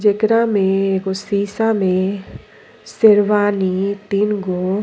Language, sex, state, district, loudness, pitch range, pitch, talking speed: Bhojpuri, female, Uttar Pradesh, Deoria, -17 LUFS, 190-210 Hz, 200 Hz, 110 wpm